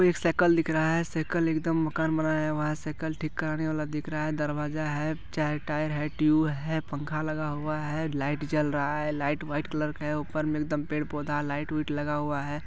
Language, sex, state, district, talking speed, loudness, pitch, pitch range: Hindi, male, Bihar, Supaul, 230 wpm, -29 LUFS, 155 Hz, 150-155 Hz